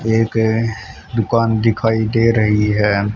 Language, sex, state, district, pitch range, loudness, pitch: Hindi, male, Haryana, Charkhi Dadri, 105-115 Hz, -16 LUFS, 110 Hz